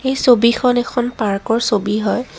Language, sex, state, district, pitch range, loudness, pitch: Assamese, female, Assam, Kamrup Metropolitan, 210-245 Hz, -16 LUFS, 235 Hz